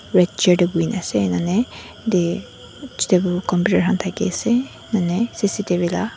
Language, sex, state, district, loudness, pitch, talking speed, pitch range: Nagamese, female, Nagaland, Dimapur, -20 LUFS, 180 Hz, 135 wpm, 175-220 Hz